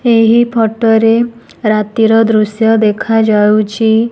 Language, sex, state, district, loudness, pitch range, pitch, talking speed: Odia, female, Odisha, Nuapada, -11 LUFS, 215-230 Hz, 225 Hz, 85 wpm